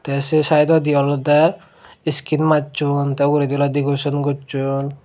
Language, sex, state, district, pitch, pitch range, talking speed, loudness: Chakma, male, Tripura, Dhalai, 145 Hz, 140-155 Hz, 130 wpm, -18 LUFS